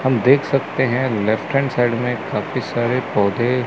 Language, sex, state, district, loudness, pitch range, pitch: Hindi, male, Chandigarh, Chandigarh, -19 LUFS, 120-130 Hz, 125 Hz